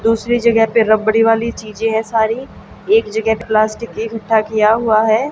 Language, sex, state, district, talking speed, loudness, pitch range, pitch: Hindi, female, Haryana, Jhajjar, 180 wpm, -15 LUFS, 220-230 Hz, 225 Hz